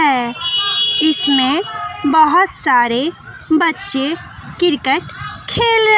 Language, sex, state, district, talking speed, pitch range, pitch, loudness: Hindi, female, Bihar, West Champaran, 80 wpm, 280-395 Hz, 325 Hz, -15 LUFS